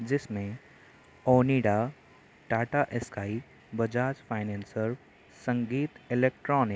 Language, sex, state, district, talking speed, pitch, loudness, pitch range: Hindi, male, Bihar, Gopalganj, 70 wpm, 120 Hz, -30 LUFS, 110-130 Hz